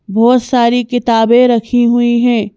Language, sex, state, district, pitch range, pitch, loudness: Hindi, female, Madhya Pradesh, Bhopal, 230-245 Hz, 240 Hz, -11 LUFS